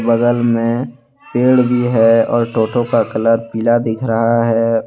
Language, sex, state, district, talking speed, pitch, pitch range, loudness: Hindi, male, Jharkhand, Deoghar, 160 wpm, 115 Hz, 115-120 Hz, -14 LUFS